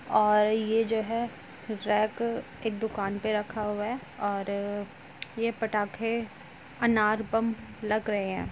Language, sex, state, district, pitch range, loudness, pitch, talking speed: Hindi, female, Uttar Pradesh, Jyotiba Phule Nagar, 210-225 Hz, -29 LUFS, 215 Hz, 135 wpm